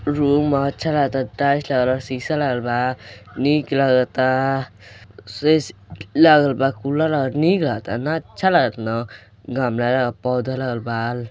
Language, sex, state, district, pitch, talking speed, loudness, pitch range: Hindi, male, Uttar Pradesh, Deoria, 130 Hz, 155 wpm, -20 LUFS, 120-145 Hz